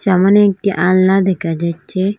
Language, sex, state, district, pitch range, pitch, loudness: Bengali, female, Assam, Hailakandi, 180-195 Hz, 190 Hz, -14 LUFS